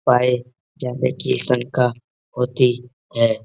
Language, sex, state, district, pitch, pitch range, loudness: Hindi, male, Uttar Pradesh, Etah, 125 Hz, 120-125 Hz, -19 LUFS